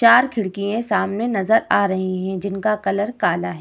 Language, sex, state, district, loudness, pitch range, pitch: Hindi, female, Bihar, Vaishali, -20 LUFS, 190-225 Hz, 200 Hz